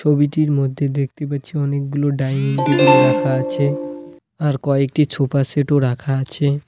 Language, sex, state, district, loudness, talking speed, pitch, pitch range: Bengali, male, West Bengal, Alipurduar, -18 LUFS, 125 wpm, 140 Hz, 135-145 Hz